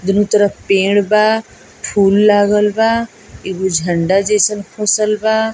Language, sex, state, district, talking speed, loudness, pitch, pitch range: Bhojpuri, female, Bihar, East Champaran, 140 wpm, -14 LUFS, 210 Hz, 200-215 Hz